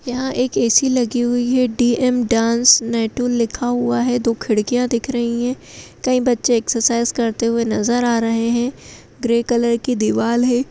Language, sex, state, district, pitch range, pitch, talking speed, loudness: Hindi, female, Bihar, Madhepura, 235-245 Hz, 240 Hz, 180 wpm, -17 LUFS